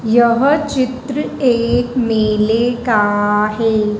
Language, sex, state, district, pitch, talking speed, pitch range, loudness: Hindi, female, Madhya Pradesh, Dhar, 235 Hz, 90 wpm, 215-250 Hz, -15 LUFS